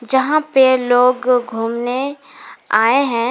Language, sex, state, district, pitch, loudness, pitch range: Hindi, female, Jharkhand, Garhwa, 250 Hz, -15 LUFS, 240-270 Hz